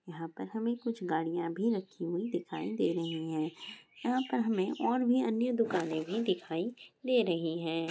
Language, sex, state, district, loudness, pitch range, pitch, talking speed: Hindi, female, Bihar, Bhagalpur, -33 LUFS, 165-230 Hz, 185 Hz, 180 wpm